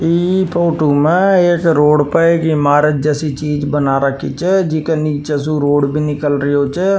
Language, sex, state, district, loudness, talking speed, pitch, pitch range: Rajasthani, male, Rajasthan, Nagaur, -14 LUFS, 190 wpm, 150 Hz, 145-170 Hz